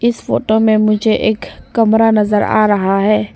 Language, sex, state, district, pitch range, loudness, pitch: Hindi, female, Arunachal Pradesh, Papum Pare, 210-220 Hz, -13 LUFS, 215 Hz